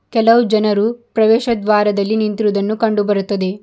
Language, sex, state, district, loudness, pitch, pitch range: Kannada, female, Karnataka, Bidar, -15 LUFS, 215 Hz, 205-225 Hz